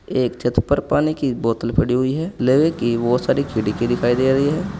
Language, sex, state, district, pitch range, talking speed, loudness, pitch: Hindi, male, Uttar Pradesh, Saharanpur, 120-140 Hz, 225 wpm, -19 LUFS, 125 Hz